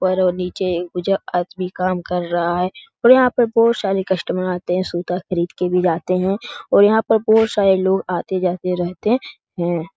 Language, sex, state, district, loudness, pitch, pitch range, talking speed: Hindi, male, Bihar, Jahanabad, -18 LUFS, 185 Hz, 180-200 Hz, 200 wpm